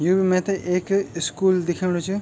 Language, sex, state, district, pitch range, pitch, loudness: Garhwali, male, Uttarakhand, Tehri Garhwal, 175-190 Hz, 185 Hz, -22 LUFS